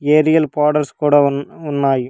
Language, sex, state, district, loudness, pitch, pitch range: Telugu, female, Telangana, Hyderabad, -16 LUFS, 145 Hz, 140-150 Hz